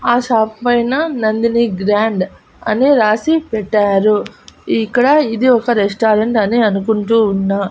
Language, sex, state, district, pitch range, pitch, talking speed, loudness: Telugu, female, Andhra Pradesh, Annamaya, 210-240 Hz, 225 Hz, 115 wpm, -14 LUFS